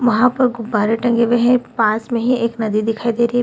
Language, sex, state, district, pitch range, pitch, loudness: Hindi, female, Bihar, Purnia, 225-245 Hz, 235 Hz, -17 LUFS